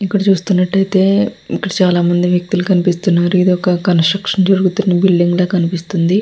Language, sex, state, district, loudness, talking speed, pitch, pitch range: Telugu, female, Andhra Pradesh, Guntur, -14 LUFS, 105 wpm, 185 Hz, 175-195 Hz